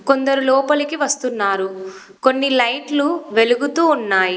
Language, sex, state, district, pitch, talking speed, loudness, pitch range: Telugu, female, Telangana, Komaram Bheem, 265 Hz, 95 wpm, -17 LUFS, 220-285 Hz